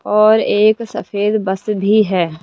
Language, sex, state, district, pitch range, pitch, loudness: Hindi, male, Rajasthan, Jaipur, 195-215 Hz, 210 Hz, -15 LUFS